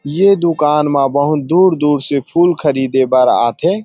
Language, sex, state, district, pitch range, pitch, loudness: Chhattisgarhi, male, Chhattisgarh, Rajnandgaon, 140-170 Hz, 150 Hz, -13 LUFS